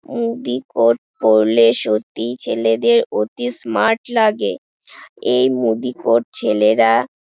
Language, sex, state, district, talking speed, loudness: Bengali, female, West Bengal, Dakshin Dinajpur, 100 wpm, -17 LUFS